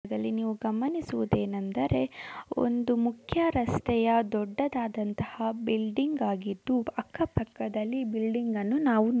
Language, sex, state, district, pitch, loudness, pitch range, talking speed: Kannada, female, Karnataka, Dakshina Kannada, 225 Hz, -29 LUFS, 210-245 Hz, 85 wpm